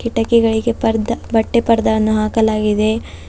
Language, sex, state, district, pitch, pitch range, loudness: Kannada, female, Karnataka, Bidar, 225 Hz, 215-230 Hz, -16 LUFS